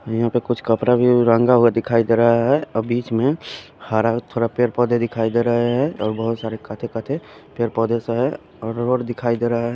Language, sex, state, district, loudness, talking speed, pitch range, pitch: Hindi, male, Bihar, West Champaran, -19 LUFS, 210 wpm, 115-120 Hz, 120 Hz